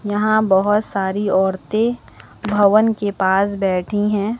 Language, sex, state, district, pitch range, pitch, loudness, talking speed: Hindi, female, Uttar Pradesh, Lucknow, 195-215 Hz, 205 Hz, -18 LUFS, 120 wpm